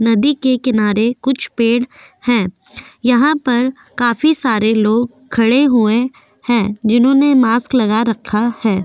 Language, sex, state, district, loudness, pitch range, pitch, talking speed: Hindi, female, Goa, North and South Goa, -15 LUFS, 225-260 Hz, 240 Hz, 130 wpm